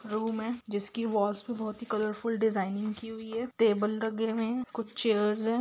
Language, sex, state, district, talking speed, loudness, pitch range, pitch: Hindi, female, Bihar, Darbhanga, 205 wpm, -31 LUFS, 215-230 Hz, 220 Hz